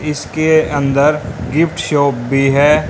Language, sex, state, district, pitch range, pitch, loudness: Hindi, male, Haryana, Rohtak, 140-155 Hz, 145 Hz, -14 LUFS